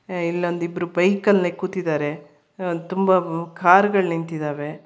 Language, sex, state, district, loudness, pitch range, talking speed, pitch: Kannada, female, Karnataka, Bangalore, -21 LUFS, 160-185 Hz, 135 wpm, 175 Hz